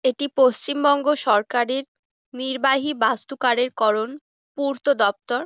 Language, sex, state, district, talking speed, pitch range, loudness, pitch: Bengali, female, West Bengal, Jhargram, 100 wpm, 240-280 Hz, -21 LUFS, 260 Hz